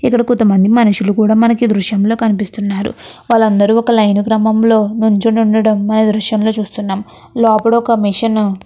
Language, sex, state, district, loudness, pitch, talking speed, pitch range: Telugu, female, Andhra Pradesh, Chittoor, -12 LUFS, 220 Hz, 160 wpm, 205-225 Hz